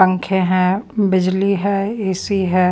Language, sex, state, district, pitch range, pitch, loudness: Hindi, female, Bihar, Patna, 185-200 Hz, 190 Hz, -17 LUFS